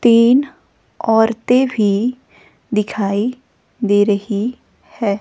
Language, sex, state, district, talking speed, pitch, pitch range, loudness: Hindi, female, Himachal Pradesh, Shimla, 80 wpm, 225 Hz, 205-255 Hz, -16 LUFS